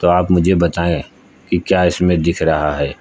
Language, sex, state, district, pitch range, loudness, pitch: Hindi, male, Uttar Pradesh, Lucknow, 80-90 Hz, -16 LUFS, 85 Hz